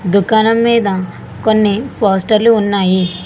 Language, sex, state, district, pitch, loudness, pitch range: Telugu, female, Telangana, Hyderabad, 205 Hz, -13 LUFS, 190-220 Hz